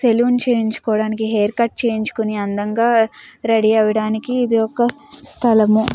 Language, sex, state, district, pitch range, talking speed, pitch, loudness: Telugu, female, Andhra Pradesh, Guntur, 220-240 Hz, 120 wpm, 225 Hz, -17 LUFS